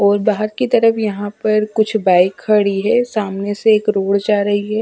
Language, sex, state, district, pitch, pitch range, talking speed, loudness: Hindi, female, Chhattisgarh, Raipur, 210 Hz, 200-220 Hz, 210 wpm, -16 LUFS